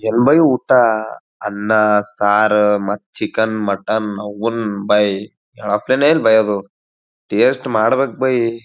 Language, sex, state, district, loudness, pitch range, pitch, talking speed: Kannada, male, Karnataka, Gulbarga, -16 LUFS, 105-110 Hz, 105 Hz, 120 wpm